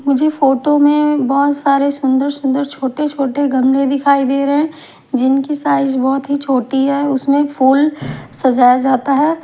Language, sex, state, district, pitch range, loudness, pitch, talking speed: Hindi, female, Maharashtra, Mumbai Suburban, 270-285 Hz, -14 LUFS, 275 Hz, 160 wpm